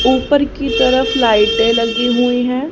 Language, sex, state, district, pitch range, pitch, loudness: Hindi, female, Haryana, Charkhi Dadri, 230-260 Hz, 245 Hz, -14 LUFS